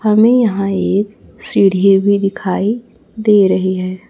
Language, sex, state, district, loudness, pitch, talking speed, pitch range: Hindi, male, Chhattisgarh, Raipur, -14 LUFS, 200 Hz, 130 wpm, 190-215 Hz